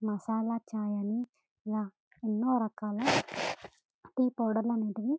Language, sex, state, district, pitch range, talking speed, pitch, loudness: Telugu, female, Telangana, Karimnagar, 215-240 Hz, 115 wpm, 225 Hz, -33 LUFS